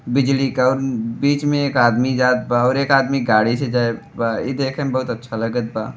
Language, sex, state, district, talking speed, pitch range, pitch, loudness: Bhojpuri, male, Uttar Pradesh, Deoria, 230 wpm, 120-135 Hz, 125 Hz, -18 LUFS